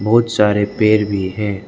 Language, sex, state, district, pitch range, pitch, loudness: Hindi, male, Arunachal Pradesh, Lower Dibang Valley, 100-110 Hz, 105 Hz, -16 LUFS